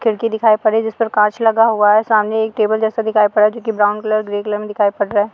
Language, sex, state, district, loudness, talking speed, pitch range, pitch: Hindi, female, Bihar, Muzaffarpur, -15 LUFS, 325 wpm, 210-225 Hz, 215 Hz